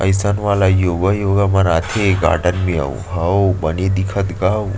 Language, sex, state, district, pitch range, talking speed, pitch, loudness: Chhattisgarhi, male, Chhattisgarh, Sarguja, 90-100 Hz, 190 wpm, 95 Hz, -16 LUFS